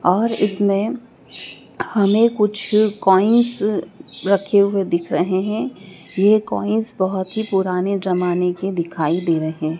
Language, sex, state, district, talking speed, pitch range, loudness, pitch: Hindi, female, Madhya Pradesh, Dhar, 125 wpm, 180-215 Hz, -19 LUFS, 200 Hz